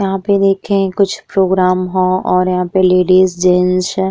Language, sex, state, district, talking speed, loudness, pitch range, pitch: Bhojpuri, female, Uttar Pradesh, Ghazipur, 190 wpm, -13 LUFS, 185-195 Hz, 185 Hz